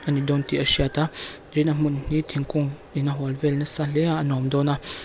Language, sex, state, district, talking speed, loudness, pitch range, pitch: Mizo, female, Mizoram, Aizawl, 260 wpm, -22 LUFS, 140-150 Hz, 145 Hz